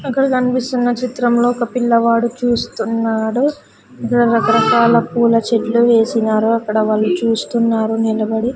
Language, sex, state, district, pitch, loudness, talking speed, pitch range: Telugu, female, Andhra Pradesh, Sri Satya Sai, 235 Hz, -15 LUFS, 100 wpm, 225-245 Hz